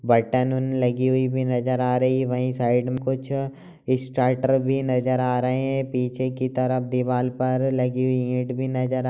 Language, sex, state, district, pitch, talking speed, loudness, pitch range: Hindi, male, Bihar, Jamui, 130 Hz, 180 wpm, -23 LUFS, 125-130 Hz